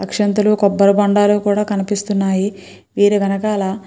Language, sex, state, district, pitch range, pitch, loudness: Telugu, female, Andhra Pradesh, Srikakulam, 195-205 Hz, 205 Hz, -15 LUFS